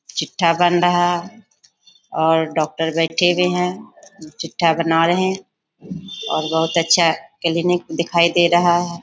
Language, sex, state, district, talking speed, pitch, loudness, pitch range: Hindi, female, Bihar, Bhagalpur, 140 wpm, 170 Hz, -18 LUFS, 165-180 Hz